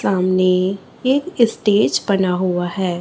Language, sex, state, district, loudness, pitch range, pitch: Hindi, female, Chhattisgarh, Raipur, -17 LUFS, 185-210 Hz, 190 Hz